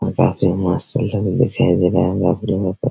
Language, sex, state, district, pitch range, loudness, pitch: Hindi, male, Bihar, Araria, 90-95 Hz, -18 LUFS, 90 Hz